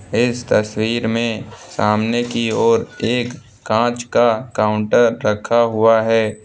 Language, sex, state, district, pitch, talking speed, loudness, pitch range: Hindi, male, Uttar Pradesh, Lucknow, 115 Hz, 120 wpm, -17 LUFS, 110-120 Hz